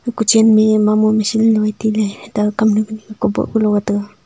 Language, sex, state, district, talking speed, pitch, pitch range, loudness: Wancho, female, Arunachal Pradesh, Longding, 195 wpm, 215 Hz, 210-220 Hz, -15 LUFS